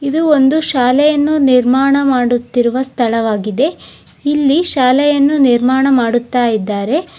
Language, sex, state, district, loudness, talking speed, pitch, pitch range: Kannada, female, Karnataka, Chamarajanagar, -12 LUFS, 85 wpm, 265 Hz, 245-290 Hz